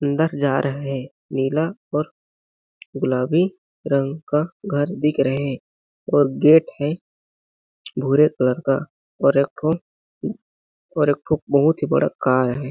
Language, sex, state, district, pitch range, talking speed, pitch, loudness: Hindi, male, Chhattisgarh, Balrampur, 135-155 Hz, 140 wpm, 145 Hz, -21 LUFS